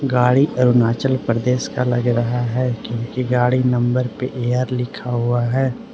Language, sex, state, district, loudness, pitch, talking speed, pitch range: Hindi, male, Arunachal Pradesh, Lower Dibang Valley, -19 LUFS, 125 Hz, 150 wpm, 120-125 Hz